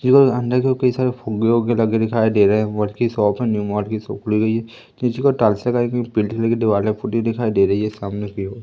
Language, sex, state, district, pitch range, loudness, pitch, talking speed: Hindi, male, Madhya Pradesh, Katni, 105-120 Hz, -19 LUFS, 115 Hz, 110 wpm